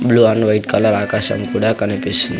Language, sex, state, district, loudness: Telugu, male, Andhra Pradesh, Sri Satya Sai, -16 LUFS